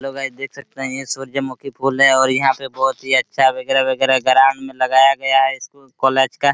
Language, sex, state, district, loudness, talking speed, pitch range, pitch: Hindi, male, Jharkhand, Jamtara, -16 LUFS, 240 wpm, 130-135 Hz, 135 Hz